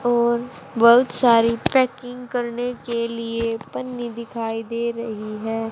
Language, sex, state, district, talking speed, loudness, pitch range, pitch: Hindi, female, Haryana, Charkhi Dadri, 125 wpm, -21 LUFS, 230-240 Hz, 235 Hz